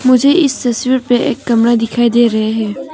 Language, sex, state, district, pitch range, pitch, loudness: Hindi, female, Arunachal Pradesh, Papum Pare, 230-260 Hz, 245 Hz, -13 LUFS